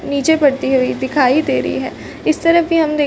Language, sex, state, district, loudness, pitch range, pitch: Hindi, female, Chhattisgarh, Rajnandgaon, -15 LUFS, 270-320 Hz, 290 Hz